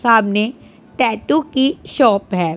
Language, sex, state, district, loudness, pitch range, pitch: Hindi, female, Punjab, Pathankot, -16 LUFS, 205-265 Hz, 230 Hz